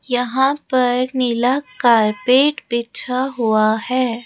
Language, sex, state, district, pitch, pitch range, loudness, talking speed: Hindi, female, Rajasthan, Jaipur, 250 Hz, 235-260 Hz, -17 LUFS, 100 wpm